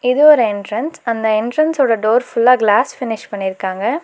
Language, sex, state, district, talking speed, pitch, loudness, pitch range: Tamil, female, Tamil Nadu, Nilgiris, 150 wpm, 230 Hz, -15 LUFS, 210-255 Hz